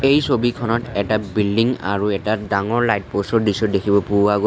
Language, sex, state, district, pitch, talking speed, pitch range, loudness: Assamese, male, Assam, Sonitpur, 105 Hz, 185 wpm, 100-115 Hz, -19 LUFS